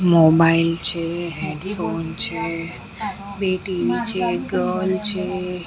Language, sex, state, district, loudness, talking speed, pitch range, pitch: Gujarati, female, Maharashtra, Mumbai Suburban, -20 LUFS, 105 wpm, 165-190 Hz, 175 Hz